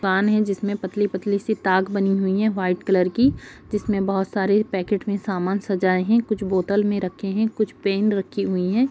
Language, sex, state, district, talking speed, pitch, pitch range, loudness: Hindi, female, Uttar Pradesh, Jyotiba Phule Nagar, 215 wpm, 200 Hz, 190-210 Hz, -22 LUFS